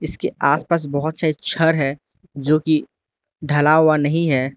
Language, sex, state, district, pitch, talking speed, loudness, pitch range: Hindi, male, Arunachal Pradesh, Lower Dibang Valley, 155 Hz, 170 wpm, -18 LUFS, 145-160 Hz